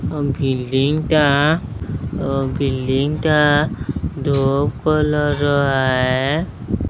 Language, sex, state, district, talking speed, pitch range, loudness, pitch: Odia, male, Odisha, Sambalpur, 45 wpm, 130-150 Hz, -18 LUFS, 140 Hz